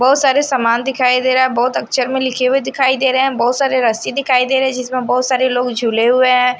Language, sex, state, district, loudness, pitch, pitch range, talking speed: Hindi, male, Odisha, Nuapada, -14 LUFS, 255 Hz, 250-265 Hz, 275 wpm